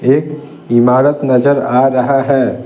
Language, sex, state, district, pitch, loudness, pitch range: Hindi, male, Bihar, Patna, 135 Hz, -12 LUFS, 125-140 Hz